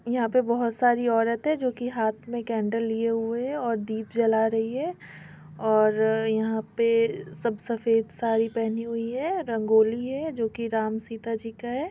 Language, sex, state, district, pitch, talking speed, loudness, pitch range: Hindi, female, Bihar, Muzaffarpur, 230 Hz, 180 wpm, -26 LUFS, 220-240 Hz